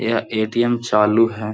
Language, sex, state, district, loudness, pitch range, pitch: Hindi, male, Bihar, Jahanabad, -18 LUFS, 105-120 Hz, 110 Hz